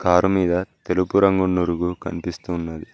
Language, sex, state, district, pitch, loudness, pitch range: Telugu, male, Telangana, Mahabubabad, 90 Hz, -21 LUFS, 85-95 Hz